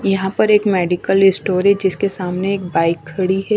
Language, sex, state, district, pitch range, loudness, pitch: Hindi, female, Punjab, Kapurthala, 180-200 Hz, -16 LUFS, 190 Hz